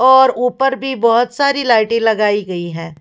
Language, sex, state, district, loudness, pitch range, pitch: Hindi, female, Bihar, Patna, -14 LUFS, 210-265 Hz, 235 Hz